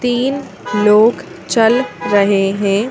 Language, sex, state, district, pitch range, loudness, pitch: Hindi, female, Madhya Pradesh, Bhopal, 195-240 Hz, -14 LUFS, 210 Hz